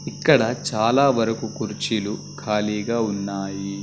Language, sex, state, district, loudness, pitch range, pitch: Telugu, male, Telangana, Karimnagar, -22 LUFS, 100-115 Hz, 105 Hz